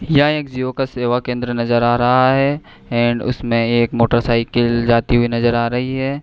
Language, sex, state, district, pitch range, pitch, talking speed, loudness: Hindi, male, Uttar Pradesh, Hamirpur, 120-130 Hz, 120 Hz, 190 wpm, -17 LUFS